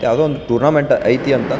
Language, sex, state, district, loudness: Kannada, male, Karnataka, Belgaum, -15 LUFS